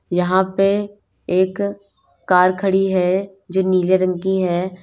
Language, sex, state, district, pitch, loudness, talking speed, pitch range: Hindi, female, Uttar Pradesh, Lalitpur, 185 Hz, -18 LUFS, 135 wpm, 180-195 Hz